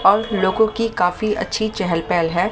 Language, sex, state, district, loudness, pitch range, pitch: Hindi, female, Delhi, New Delhi, -19 LUFS, 180-220 Hz, 210 Hz